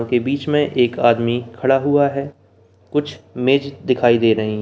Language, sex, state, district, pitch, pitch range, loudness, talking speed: Hindi, male, Bihar, Begusarai, 125 Hz, 115-140 Hz, -18 LUFS, 180 wpm